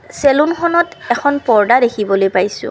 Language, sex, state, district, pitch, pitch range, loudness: Assamese, female, Assam, Kamrup Metropolitan, 250 Hz, 210-300 Hz, -14 LUFS